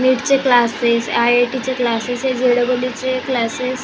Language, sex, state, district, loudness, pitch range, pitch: Marathi, female, Maharashtra, Gondia, -17 LUFS, 240-260 Hz, 250 Hz